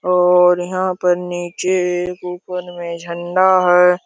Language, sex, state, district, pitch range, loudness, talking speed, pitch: Hindi, male, Jharkhand, Jamtara, 175-180 Hz, -16 LUFS, 120 wpm, 180 Hz